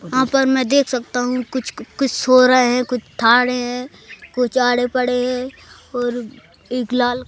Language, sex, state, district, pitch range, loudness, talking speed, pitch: Hindi, male, Madhya Pradesh, Bhopal, 245-255 Hz, -17 LUFS, 165 wpm, 250 Hz